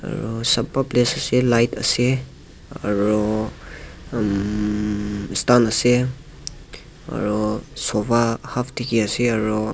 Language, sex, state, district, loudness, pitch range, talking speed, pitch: Nagamese, male, Nagaland, Dimapur, -21 LUFS, 105-125 Hz, 80 wpm, 115 Hz